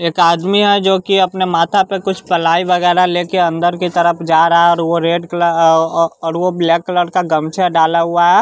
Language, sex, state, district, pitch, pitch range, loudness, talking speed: Hindi, male, Bihar, West Champaran, 175 Hz, 165-180 Hz, -13 LUFS, 205 wpm